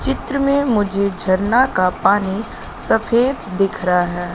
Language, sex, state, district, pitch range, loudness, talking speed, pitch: Hindi, female, Madhya Pradesh, Katni, 185-240 Hz, -17 LUFS, 140 wpm, 200 Hz